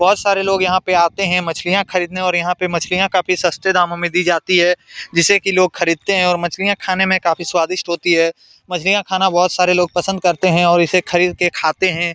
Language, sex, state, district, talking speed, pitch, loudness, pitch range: Hindi, male, Bihar, Saran, 230 wpm, 180 Hz, -15 LUFS, 175-185 Hz